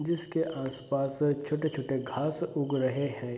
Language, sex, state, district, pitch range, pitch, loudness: Hindi, male, Bihar, Darbhanga, 135-155 Hz, 140 Hz, -31 LUFS